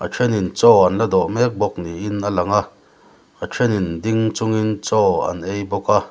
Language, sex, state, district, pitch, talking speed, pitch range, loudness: Mizo, male, Mizoram, Aizawl, 105 Hz, 185 wpm, 100-110 Hz, -18 LUFS